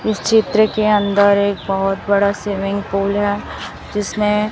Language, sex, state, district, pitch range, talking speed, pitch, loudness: Hindi, female, Chhattisgarh, Raipur, 200-210 Hz, 145 wpm, 205 Hz, -17 LUFS